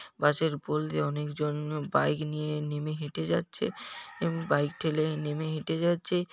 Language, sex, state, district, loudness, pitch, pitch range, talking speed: Bengali, male, West Bengal, Jhargram, -30 LUFS, 150 Hz, 150-160 Hz, 135 wpm